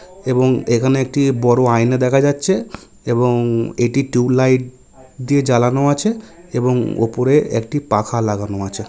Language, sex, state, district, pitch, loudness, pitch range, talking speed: Bengali, male, West Bengal, Jhargram, 125 Hz, -16 LUFS, 120-140 Hz, 135 wpm